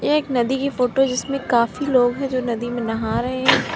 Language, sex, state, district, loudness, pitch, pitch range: Hindi, female, Uttar Pradesh, Lalitpur, -20 LUFS, 255 Hz, 240-275 Hz